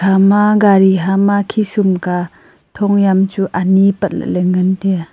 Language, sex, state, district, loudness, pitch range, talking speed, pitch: Wancho, female, Arunachal Pradesh, Longding, -13 LUFS, 185-200 Hz, 150 wpm, 195 Hz